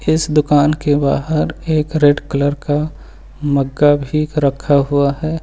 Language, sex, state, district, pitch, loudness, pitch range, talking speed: Hindi, male, Uttar Pradesh, Lucknow, 145 Hz, -16 LUFS, 145-150 Hz, 155 wpm